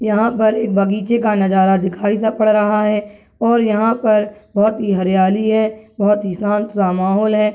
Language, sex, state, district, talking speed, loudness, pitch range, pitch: Angika, female, Bihar, Madhepura, 190 wpm, -16 LUFS, 200-220 Hz, 210 Hz